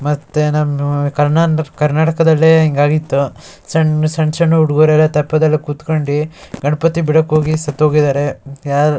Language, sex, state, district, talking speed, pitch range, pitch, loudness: Kannada, male, Karnataka, Shimoga, 100 wpm, 145-155 Hz, 150 Hz, -14 LUFS